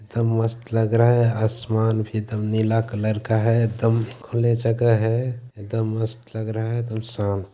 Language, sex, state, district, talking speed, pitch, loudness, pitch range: Hindi, male, Chhattisgarh, Jashpur, 175 wpm, 115 Hz, -22 LUFS, 110-115 Hz